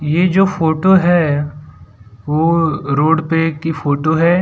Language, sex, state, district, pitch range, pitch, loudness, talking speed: Hindi, male, Gujarat, Valsad, 145-170 Hz, 160 Hz, -15 LUFS, 135 wpm